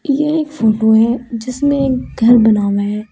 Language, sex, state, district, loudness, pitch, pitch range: Hindi, female, Uttar Pradesh, Saharanpur, -14 LUFS, 235 Hz, 220-275 Hz